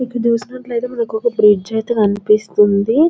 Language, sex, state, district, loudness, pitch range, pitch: Telugu, female, Telangana, Nalgonda, -16 LUFS, 210-240 Hz, 230 Hz